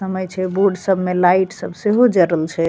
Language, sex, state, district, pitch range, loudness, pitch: Maithili, female, Bihar, Begusarai, 180-195 Hz, -17 LUFS, 185 Hz